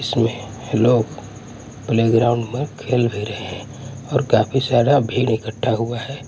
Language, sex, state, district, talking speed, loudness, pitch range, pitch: Hindi, male, Punjab, Kapurthala, 135 wpm, -19 LUFS, 115-130 Hz, 120 Hz